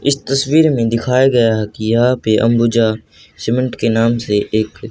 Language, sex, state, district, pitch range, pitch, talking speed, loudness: Hindi, male, Haryana, Charkhi Dadri, 110-125 Hz, 115 Hz, 185 wpm, -15 LUFS